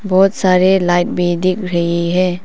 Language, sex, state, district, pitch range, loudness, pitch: Hindi, female, Arunachal Pradesh, Papum Pare, 175-190 Hz, -14 LUFS, 185 Hz